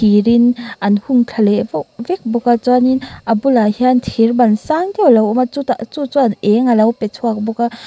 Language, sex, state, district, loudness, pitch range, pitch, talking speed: Mizo, female, Mizoram, Aizawl, -14 LUFS, 220-250 Hz, 235 Hz, 250 wpm